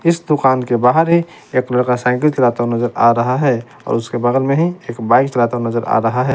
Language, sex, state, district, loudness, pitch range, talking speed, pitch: Hindi, male, Bihar, West Champaran, -15 LUFS, 120-135 Hz, 235 wpm, 125 Hz